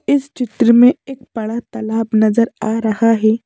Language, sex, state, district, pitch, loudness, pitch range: Hindi, female, Madhya Pradesh, Bhopal, 230 Hz, -15 LUFS, 220-250 Hz